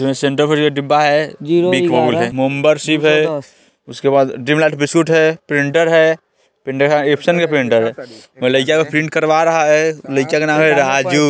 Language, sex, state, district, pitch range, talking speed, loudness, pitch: Bajjika, male, Bihar, Vaishali, 140-160 Hz, 210 wpm, -14 LUFS, 150 Hz